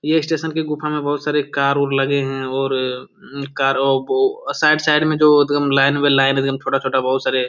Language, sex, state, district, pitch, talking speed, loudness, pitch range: Hindi, male, Bihar, Jamui, 140 Hz, 215 wpm, -17 LUFS, 135-150 Hz